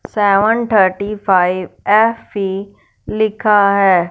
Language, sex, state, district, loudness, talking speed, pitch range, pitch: Hindi, female, Punjab, Fazilka, -14 LUFS, 100 wpm, 190-215 Hz, 200 Hz